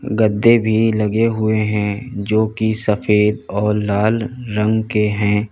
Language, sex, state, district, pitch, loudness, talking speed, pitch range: Hindi, male, Uttar Pradesh, Lalitpur, 110 Hz, -17 LUFS, 140 wpm, 105-110 Hz